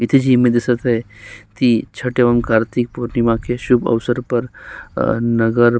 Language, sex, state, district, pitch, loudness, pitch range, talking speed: Marathi, male, Maharashtra, Solapur, 120 Hz, -17 LUFS, 115-125 Hz, 125 wpm